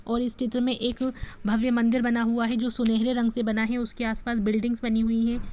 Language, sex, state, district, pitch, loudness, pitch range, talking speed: Hindi, female, Jharkhand, Jamtara, 235 Hz, -26 LUFS, 225-245 Hz, 250 wpm